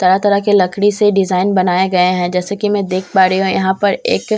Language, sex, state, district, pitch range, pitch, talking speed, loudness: Hindi, female, Bihar, Katihar, 185-205 Hz, 190 Hz, 260 wpm, -14 LUFS